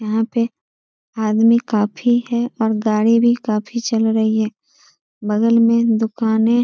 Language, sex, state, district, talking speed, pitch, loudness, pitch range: Hindi, female, Bihar, Sitamarhi, 145 wpm, 225 Hz, -17 LUFS, 220-235 Hz